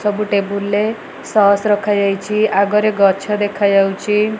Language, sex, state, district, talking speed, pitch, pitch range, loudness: Odia, female, Odisha, Malkangiri, 120 wpm, 205 Hz, 200-210 Hz, -15 LUFS